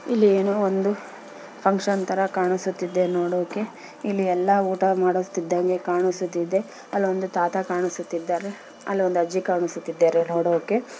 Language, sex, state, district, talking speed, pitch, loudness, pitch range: Kannada, female, Karnataka, Bellary, 105 wpm, 185 Hz, -23 LUFS, 180-200 Hz